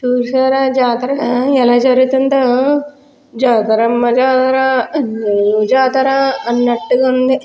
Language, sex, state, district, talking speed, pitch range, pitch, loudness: Telugu, female, Andhra Pradesh, Guntur, 80 wpm, 240-265 Hz, 260 Hz, -13 LUFS